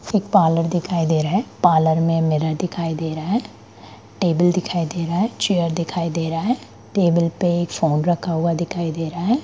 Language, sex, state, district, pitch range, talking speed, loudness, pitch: Hindi, female, Bihar, Gopalganj, 160-180 Hz, 195 wpm, -20 LUFS, 170 Hz